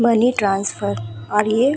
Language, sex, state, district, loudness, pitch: Hindi, female, Bihar, Vaishali, -19 LUFS, 210 Hz